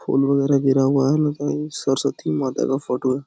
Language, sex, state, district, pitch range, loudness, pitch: Hindi, male, Bihar, Lakhisarai, 135-145 Hz, -20 LUFS, 140 Hz